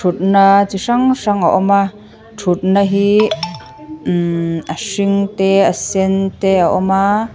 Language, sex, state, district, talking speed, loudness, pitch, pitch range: Mizo, female, Mizoram, Aizawl, 155 wpm, -14 LUFS, 195 Hz, 185-205 Hz